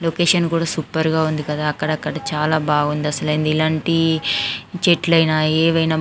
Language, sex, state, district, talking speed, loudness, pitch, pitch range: Telugu, female, Andhra Pradesh, Anantapur, 140 wpm, -18 LUFS, 160 Hz, 150-165 Hz